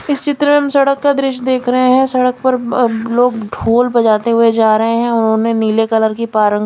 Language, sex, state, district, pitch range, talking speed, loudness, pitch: Hindi, female, Chandigarh, Chandigarh, 225-260 Hz, 225 wpm, -13 LUFS, 235 Hz